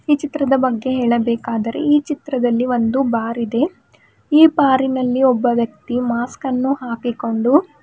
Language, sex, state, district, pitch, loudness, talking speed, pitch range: Kannada, female, Karnataka, Bidar, 250 Hz, -17 LUFS, 105 wpm, 235-280 Hz